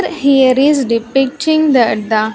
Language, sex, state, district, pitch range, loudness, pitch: English, female, Andhra Pradesh, Sri Satya Sai, 230-290 Hz, -12 LUFS, 270 Hz